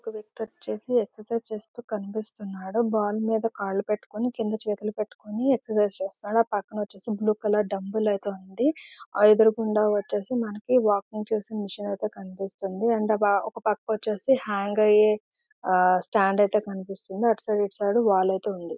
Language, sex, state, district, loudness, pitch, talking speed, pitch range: Telugu, female, Andhra Pradesh, Visakhapatnam, -25 LUFS, 210 Hz, 145 wpm, 200-225 Hz